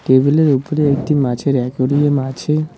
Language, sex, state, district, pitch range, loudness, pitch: Bengali, male, West Bengal, Cooch Behar, 130-150 Hz, -16 LUFS, 140 Hz